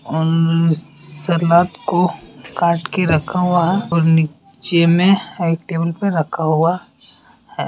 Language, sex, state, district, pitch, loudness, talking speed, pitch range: Hindi, male, Bihar, Bhagalpur, 170 Hz, -17 LUFS, 135 wpm, 160-180 Hz